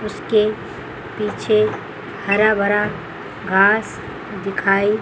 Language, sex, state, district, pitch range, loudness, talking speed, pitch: Hindi, female, Chandigarh, Chandigarh, 195-215 Hz, -18 LUFS, 70 wpm, 210 Hz